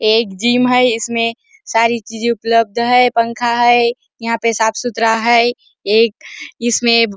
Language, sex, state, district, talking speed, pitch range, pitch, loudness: Hindi, female, Chhattisgarh, Bastar, 150 wpm, 230-240 Hz, 235 Hz, -14 LUFS